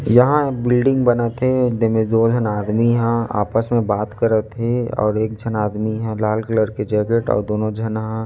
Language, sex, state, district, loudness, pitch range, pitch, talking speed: Chhattisgarhi, male, Chhattisgarh, Rajnandgaon, -18 LUFS, 110-120 Hz, 115 Hz, 205 wpm